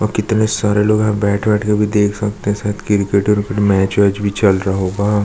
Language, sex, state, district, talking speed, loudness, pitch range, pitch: Hindi, male, Chhattisgarh, Jashpur, 240 wpm, -15 LUFS, 100-105 Hz, 105 Hz